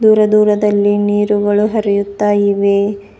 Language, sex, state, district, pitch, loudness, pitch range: Kannada, female, Karnataka, Bidar, 205 Hz, -13 LUFS, 200-210 Hz